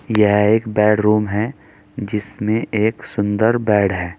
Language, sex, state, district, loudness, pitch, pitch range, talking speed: Hindi, male, Uttar Pradesh, Saharanpur, -17 LUFS, 105 Hz, 105-110 Hz, 130 wpm